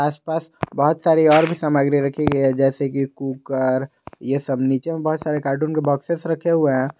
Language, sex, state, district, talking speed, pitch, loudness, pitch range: Hindi, male, Jharkhand, Garhwa, 215 wpm, 145 Hz, -20 LUFS, 135-160 Hz